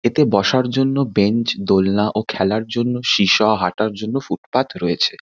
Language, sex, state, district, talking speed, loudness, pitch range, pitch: Bengali, male, West Bengal, Kolkata, 150 wpm, -18 LUFS, 100-125 Hz, 110 Hz